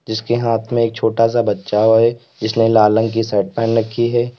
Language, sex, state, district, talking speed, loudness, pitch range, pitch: Hindi, male, Uttar Pradesh, Lalitpur, 230 wpm, -16 LUFS, 110-120 Hz, 115 Hz